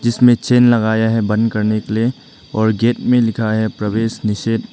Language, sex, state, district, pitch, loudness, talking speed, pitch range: Hindi, male, Arunachal Pradesh, Lower Dibang Valley, 110 Hz, -16 LUFS, 190 wpm, 110-120 Hz